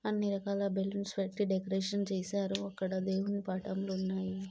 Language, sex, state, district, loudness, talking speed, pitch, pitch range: Telugu, female, Andhra Pradesh, Guntur, -35 LUFS, 135 wpm, 195 Hz, 190-200 Hz